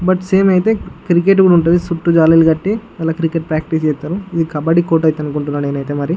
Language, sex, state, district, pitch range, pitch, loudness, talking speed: Telugu, male, Andhra Pradesh, Guntur, 155-180 Hz, 165 Hz, -14 LUFS, 195 wpm